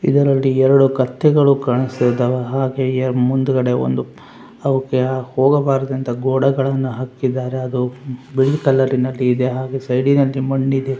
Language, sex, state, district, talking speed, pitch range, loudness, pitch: Kannada, male, Karnataka, Raichur, 110 wpm, 125-135 Hz, -17 LUFS, 130 Hz